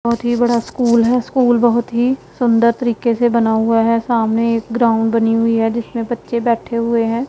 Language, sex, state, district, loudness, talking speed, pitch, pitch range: Hindi, female, Punjab, Pathankot, -16 LUFS, 205 wpm, 235 Hz, 230-240 Hz